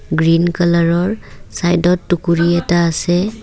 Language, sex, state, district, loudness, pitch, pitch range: Assamese, female, Assam, Kamrup Metropolitan, -15 LUFS, 175 Hz, 170-175 Hz